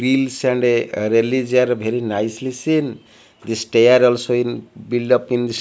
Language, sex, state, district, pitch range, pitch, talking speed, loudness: English, male, Odisha, Malkangiri, 115-125 Hz, 120 Hz, 150 wpm, -18 LUFS